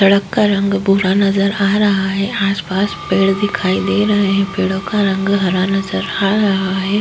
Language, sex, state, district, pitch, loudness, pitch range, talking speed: Hindi, female, Uttar Pradesh, Budaun, 195 Hz, -15 LUFS, 195-200 Hz, 195 wpm